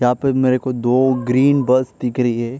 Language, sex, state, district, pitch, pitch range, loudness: Hindi, male, Maharashtra, Chandrapur, 130 Hz, 125-130 Hz, -17 LUFS